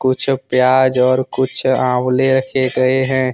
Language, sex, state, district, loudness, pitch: Hindi, male, Jharkhand, Ranchi, -15 LUFS, 130 Hz